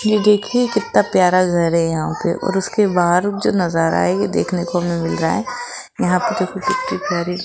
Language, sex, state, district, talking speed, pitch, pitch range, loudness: Hindi, female, Rajasthan, Jaipur, 210 wpm, 180 Hz, 175-205 Hz, -18 LUFS